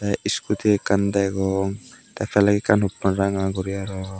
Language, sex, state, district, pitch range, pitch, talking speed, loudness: Chakma, male, Tripura, Unakoti, 95-105 Hz, 100 Hz, 160 wpm, -22 LUFS